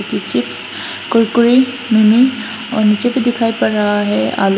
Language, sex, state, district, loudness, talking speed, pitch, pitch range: Hindi, female, Assam, Hailakandi, -14 LUFS, 145 wpm, 230 Hz, 210-245 Hz